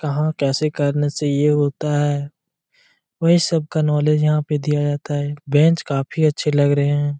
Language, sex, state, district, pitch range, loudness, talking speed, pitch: Hindi, male, Jharkhand, Jamtara, 145-155 Hz, -19 LUFS, 185 wpm, 150 Hz